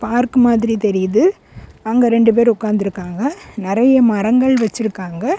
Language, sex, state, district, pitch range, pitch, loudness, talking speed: Tamil, female, Tamil Nadu, Kanyakumari, 210-245 Hz, 230 Hz, -15 LUFS, 110 wpm